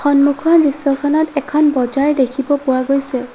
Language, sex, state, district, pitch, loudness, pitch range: Assamese, female, Assam, Sonitpur, 280 Hz, -15 LUFS, 275-295 Hz